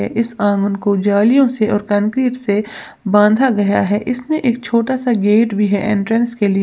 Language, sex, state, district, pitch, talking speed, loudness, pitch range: Hindi, female, Uttar Pradesh, Lalitpur, 210 Hz, 190 wpm, -15 LUFS, 205-235 Hz